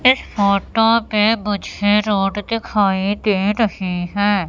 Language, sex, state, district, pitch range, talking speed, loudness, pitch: Hindi, female, Madhya Pradesh, Katni, 200-215 Hz, 120 wpm, -18 LUFS, 205 Hz